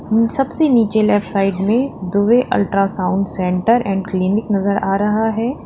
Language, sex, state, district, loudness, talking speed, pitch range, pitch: Hindi, female, Uttar Pradesh, Lalitpur, -16 LUFS, 150 wpm, 195-230 Hz, 205 Hz